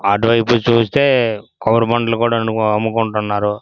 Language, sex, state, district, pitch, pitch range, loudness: Telugu, male, Andhra Pradesh, Srikakulam, 115 Hz, 105-115 Hz, -16 LUFS